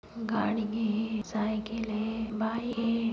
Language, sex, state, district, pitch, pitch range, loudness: Hindi, female, Bihar, Madhepura, 225 Hz, 215-225 Hz, -31 LUFS